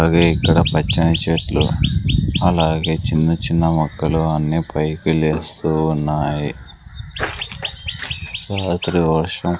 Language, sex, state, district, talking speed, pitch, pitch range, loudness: Telugu, male, Andhra Pradesh, Sri Satya Sai, 90 wpm, 80 Hz, 80-85 Hz, -18 LUFS